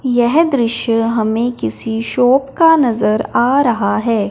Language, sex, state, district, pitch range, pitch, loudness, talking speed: Hindi, male, Punjab, Fazilka, 225-260 Hz, 235 Hz, -14 LUFS, 140 wpm